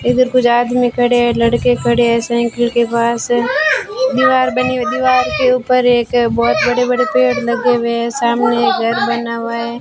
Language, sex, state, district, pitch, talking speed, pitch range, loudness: Hindi, female, Rajasthan, Bikaner, 240 Hz, 190 wpm, 235-250 Hz, -14 LUFS